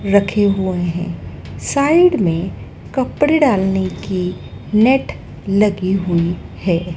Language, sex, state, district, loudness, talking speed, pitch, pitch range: Hindi, female, Madhya Pradesh, Dhar, -17 LUFS, 105 wpm, 190 Hz, 175-210 Hz